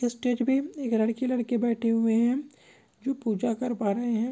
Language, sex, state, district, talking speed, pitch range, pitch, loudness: Marwari, female, Rajasthan, Nagaur, 195 wpm, 230-255 Hz, 240 Hz, -27 LUFS